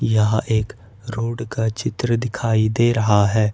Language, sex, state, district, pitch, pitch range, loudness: Hindi, male, Jharkhand, Ranchi, 110 Hz, 110-115 Hz, -20 LUFS